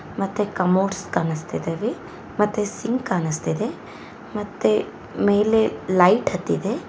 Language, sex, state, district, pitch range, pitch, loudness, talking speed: Kannada, female, Karnataka, Koppal, 180-210 Hz, 195 Hz, -22 LUFS, 80 wpm